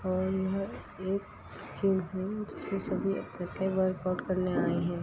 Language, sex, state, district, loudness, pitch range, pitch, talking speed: Hindi, female, Uttar Pradesh, Muzaffarnagar, -32 LUFS, 185-195 Hz, 190 Hz, 145 wpm